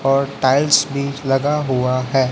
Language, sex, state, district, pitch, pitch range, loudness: Hindi, male, Chhattisgarh, Raipur, 135 Hz, 130-140 Hz, -17 LUFS